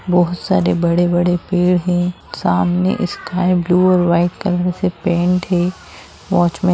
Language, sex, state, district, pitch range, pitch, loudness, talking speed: Hindi, female, Chhattisgarh, Rajnandgaon, 175-180 Hz, 175 Hz, -16 LUFS, 140 wpm